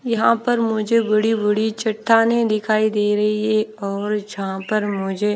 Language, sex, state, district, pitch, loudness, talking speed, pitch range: Hindi, female, Odisha, Nuapada, 215 Hz, -19 LUFS, 155 wpm, 210-225 Hz